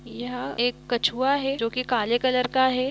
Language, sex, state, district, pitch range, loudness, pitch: Hindi, female, Bihar, East Champaran, 240-260 Hz, -24 LUFS, 250 Hz